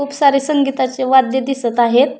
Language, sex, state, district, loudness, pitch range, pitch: Marathi, female, Maharashtra, Pune, -15 LUFS, 255-275 Hz, 265 Hz